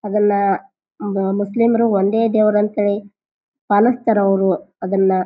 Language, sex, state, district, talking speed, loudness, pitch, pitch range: Kannada, female, Karnataka, Bijapur, 115 wpm, -17 LUFS, 205 Hz, 195-225 Hz